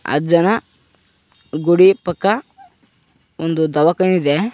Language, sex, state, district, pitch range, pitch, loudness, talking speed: Kannada, male, Karnataka, Koppal, 160-200 Hz, 175 Hz, -16 LUFS, 80 wpm